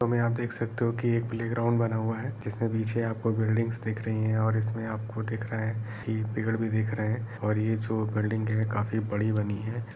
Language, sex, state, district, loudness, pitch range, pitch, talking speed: Hindi, male, Uttar Pradesh, Etah, -29 LUFS, 110-115 Hz, 110 Hz, 240 wpm